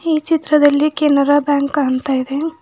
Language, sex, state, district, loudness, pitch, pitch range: Kannada, female, Karnataka, Bidar, -15 LUFS, 290 Hz, 280-305 Hz